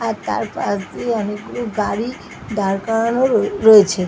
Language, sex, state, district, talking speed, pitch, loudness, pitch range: Bengali, female, West Bengal, Paschim Medinipur, 175 wpm, 210 Hz, -18 LUFS, 200-225 Hz